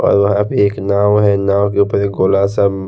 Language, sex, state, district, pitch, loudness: Hindi, male, Haryana, Rohtak, 100 Hz, -14 LUFS